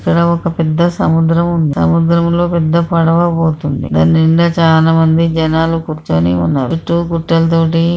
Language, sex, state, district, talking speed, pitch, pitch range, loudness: Telugu, female, Andhra Pradesh, Krishna, 135 wpm, 165 Hz, 160-170 Hz, -12 LUFS